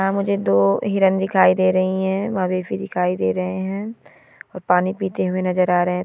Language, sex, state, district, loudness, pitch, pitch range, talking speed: Marwari, female, Rajasthan, Churu, -19 LUFS, 185 Hz, 180-195 Hz, 190 wpm